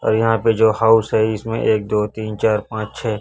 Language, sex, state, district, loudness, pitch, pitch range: Hindi, male, Chhattisgarh, Raipur, -18 LUFS, 110 Hz, 110-115 Hz